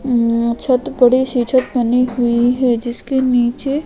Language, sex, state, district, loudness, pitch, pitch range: Hindi, female, Goa, North and South Goa, -16 LUFS, 245 Hz, 240-255 Hz